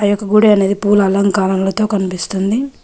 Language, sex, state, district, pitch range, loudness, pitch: Telugu, female, Telangana, Mahabubabad, 195-210 Hz, -14 LUFS, 200 Hz